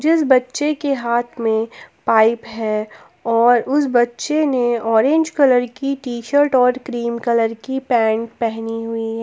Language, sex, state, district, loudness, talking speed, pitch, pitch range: Hindi, female, Jharkhand, Palamu, -18 LUFS, 150 wpm, 240 Hz, 230-270 Hz